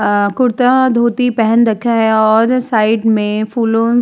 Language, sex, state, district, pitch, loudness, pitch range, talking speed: Hindi, female, Uttar Pradesh, Hamirpur, 225 Hz, -13 LUFS, 220-245 Hz, 165 wpm